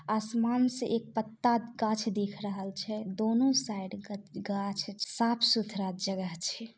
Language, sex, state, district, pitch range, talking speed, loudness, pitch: Maithili, female, Bihar, Samastipur, 200-230 Hz, 135 wpm, -31 LUFS, 215 Hz